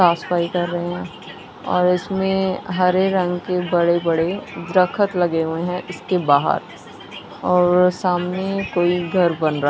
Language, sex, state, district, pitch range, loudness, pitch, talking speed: Hindi, female, Punjab, Kapurthala, 175-185 Hz, -19 LUFS, 180 Hz, 150 wpm